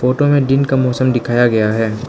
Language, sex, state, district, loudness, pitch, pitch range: Hindi, male, Arunachal Pradesh, Lower Dibang Valley, -14 LUFS, 125 Hz, 115-135 Hz